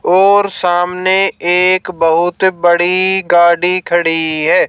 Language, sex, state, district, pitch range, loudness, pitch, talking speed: Hindi, male, Haryana, Jhajjar, 175-185 Hz, -12 LUFS, 180 Hz, 100 wpm